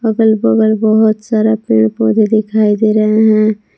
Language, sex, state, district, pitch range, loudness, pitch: Hindi, female, Jharkhand, Palamu, 215-220 Hz, -12 LUFS, 215 Hz